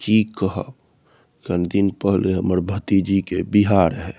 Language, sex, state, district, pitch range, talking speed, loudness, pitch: Maithili, male, Bihar, Saharsa, 90-100 Hz, 155 wpm, -20 LUFS, 95 Hz